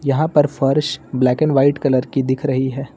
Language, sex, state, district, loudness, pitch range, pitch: Hindi, male, Uttar Pradesh, Lucknow, -17 LUFS, 130-150 Hz, 135 Hz